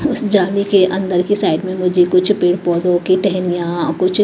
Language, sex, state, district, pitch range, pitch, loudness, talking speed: Hindi, female, Maharashtra, Mumbai Suburban, 180-195 Hz, 185 Hz, -15 LUFS, 200 wpm